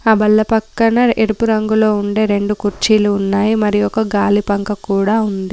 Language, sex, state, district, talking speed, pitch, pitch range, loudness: Telugu, female, Telangana, Komaram Bheem, 165 wpm, 210 Hz, 205-220 Hz, -15 LUFS